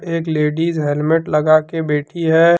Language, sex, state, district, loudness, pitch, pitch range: Hindi, male, Jharkhand, Deoghar, -17 LUFS, 160 Hz, 150-165 Hz